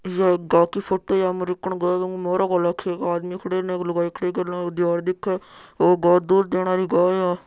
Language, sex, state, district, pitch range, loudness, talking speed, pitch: Marwari, male, Rajasthan, Churu, 175-185 Hz, -22 LUFS, 265 wpm, 180 Hz